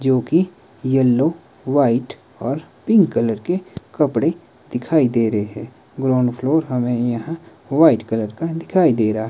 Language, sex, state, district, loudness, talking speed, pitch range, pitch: Hindi, male, Himachal Pradesh, Shimla, -19 LUFS, 155 wpm, 115-165 Hz, 130 Hz